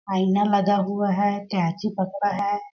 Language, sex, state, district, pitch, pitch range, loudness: Hindi, female, Chhattisgarh, Balrampur, 200 Hz, 195-205 Hz, -23 LUFS